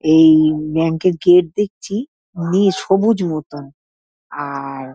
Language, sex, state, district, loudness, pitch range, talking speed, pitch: Bengali, female, West Bengal, North 24 Parganas, -16 LUFS, 145-190 Hz, 110 wpm, 160 Hz